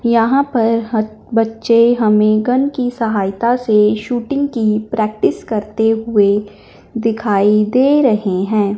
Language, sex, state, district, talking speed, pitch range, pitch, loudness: Hindi, male, Punjab, Fazilka, 125 wpm, 210-235 Hz, 225 Hz, -15 LUFS